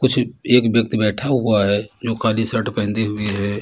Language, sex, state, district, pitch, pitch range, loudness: Hindi, male, Uttar Pradesh, Lalitpur, 110 Hz, 105-120 Hz, -19 LUFS